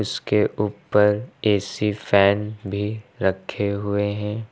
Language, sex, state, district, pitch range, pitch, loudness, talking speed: Hindi, male, Uttar Pradesh, Lucknow, 100-105 Hz, 105 Hz, -22 LUFS, 95 wpm